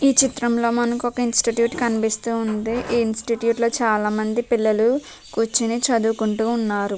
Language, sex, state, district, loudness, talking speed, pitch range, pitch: Telugu, female, Telangana, Nalgonda, -21 LUFS, 110 wpm, 220-240 Hz, 230 Hz